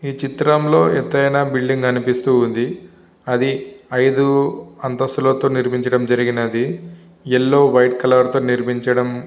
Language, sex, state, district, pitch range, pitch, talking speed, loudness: Telugu, male, Andhra Pradesh, Visakhapatnam, 125-140 Hz, 130 Hz, 105 wpm, -17 LUFS